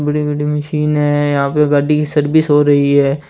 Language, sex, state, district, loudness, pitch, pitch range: Hindi, male, Rajasthan, Churu, -14 LUFS, 150 Hz, 145-150 Hz